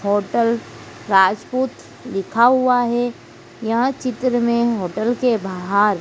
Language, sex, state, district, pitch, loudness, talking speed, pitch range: Hindi, female, Madhya Pradesh, Dhar, 235 Hz, -19 LUFS, 110 wpm, 205-245 Hz